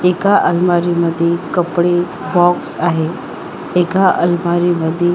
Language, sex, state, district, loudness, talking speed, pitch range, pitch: Marathi, female, Maharashtra, Washim, -15 LUFS, 115 wpm, 170-180 Hz, 175 Hz